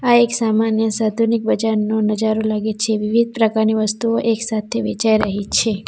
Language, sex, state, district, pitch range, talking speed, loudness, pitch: Gujarati, female, Gujarat, Valsad, 215-230 Hz, 165 wpm, -18 LUFS, 220 Hz